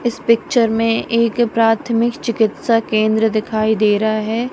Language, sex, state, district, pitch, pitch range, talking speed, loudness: Hindi, female, Punjab, Kapurthala, 225 Hz, 220-230 Hz, 145 wpm, -16 LUFS